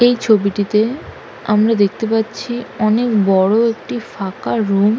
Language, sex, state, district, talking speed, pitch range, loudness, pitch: Bengali, female, West Bengal, Malda, 130 wpm, 205-230 Hz, -16 LUFS, 220 Hz